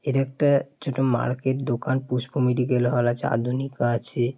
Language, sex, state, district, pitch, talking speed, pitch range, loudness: Bengali, male, West Bengal, Jalpaiguri, 125 Hz, 165 wpm, 120-135 Hz, -24 LUFS